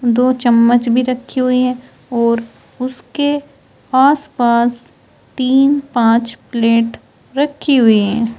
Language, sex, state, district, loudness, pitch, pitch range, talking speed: Hindi, female, Uttar Pradesh, Shamli, -14 LUFS, 250 Hz, 235-260 Hz, 105 wpm